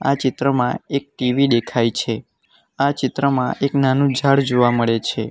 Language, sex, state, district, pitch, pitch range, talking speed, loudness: Gujarati, male, Gujarat, Valsad, 130 Hz, 120-140 Hz, 145 wpm, -19 LUFS